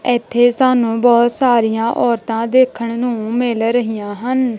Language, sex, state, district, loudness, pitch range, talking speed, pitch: Punjabi, female, Punjab, Kapurthala, -15 LUFS, 230-245 Hz, 130 wpm, 240 Hz